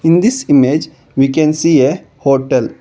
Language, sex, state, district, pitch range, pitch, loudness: English, male, Karnataka, Bangalore, 135-165 Hz, 155 Hz, -13 LUFS